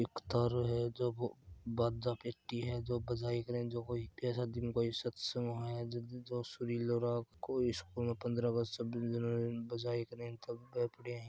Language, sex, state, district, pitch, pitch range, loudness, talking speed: Marwari, male, Rajasthan, Churu, 120 Hz, 115-120 Hz, -39 LUFS, 155 wpm